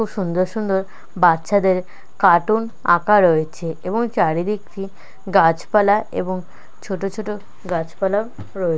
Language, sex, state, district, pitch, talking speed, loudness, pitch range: Bengali, female, West Bengal, Kolkata, 195 Hz, 100 wpm, -19 LUFS, 175-210 Hz